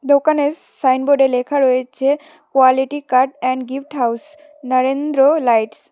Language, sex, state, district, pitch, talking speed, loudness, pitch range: Bengali, female, West Bengal, Cooch Behar, 270 Hz, 120 wpm, -16 LUFS, 255-290 Hz